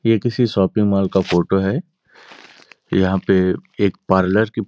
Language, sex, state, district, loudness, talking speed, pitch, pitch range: Hindi, male, Uttar Pradesh, Gorakhpur, -18 LUFS, 165 wpm, 95 Hz, 95-110 Hz